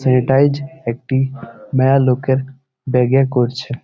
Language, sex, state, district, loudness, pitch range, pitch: Bengali, male, West Bengal, Malda, -16 LUFS, 125-135 Hz, 130 Hz